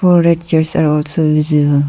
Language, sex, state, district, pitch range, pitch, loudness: English, female, Arunachal Pradesh, Lower Dibang Valley, 150-170 Hz, 155 Hz, -13 LUFS